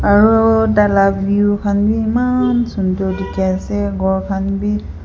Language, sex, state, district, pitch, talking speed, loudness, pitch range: Nagamese, female, Nagaland, Kohima, 205 Hz, 155 wpm, -15 LUFS, 195-220 Hz